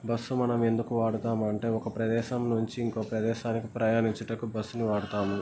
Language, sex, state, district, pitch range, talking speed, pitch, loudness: Telugu, male, Andhra Pradesh, Guntur, 110-115 Hz, 145 wpm, 115 Hz, -30 LUFS